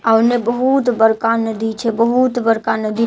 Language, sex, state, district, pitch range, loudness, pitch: Maithili, female, Bihar, Katihar, 225-245 Hz, -16 LUFS, 230 Hz